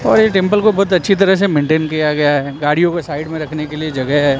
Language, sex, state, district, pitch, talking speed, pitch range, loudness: Hindi, male, Gujarat, Gandhinagar, 155 Hz, 285 wpm, 145-190 Hz, -15 LUFS